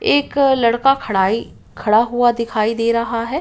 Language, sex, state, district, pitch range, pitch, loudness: Hindi, female, Uttar Pradesh, Ghazipur, 225-265 Hz, 230 Hz, -17 LUFS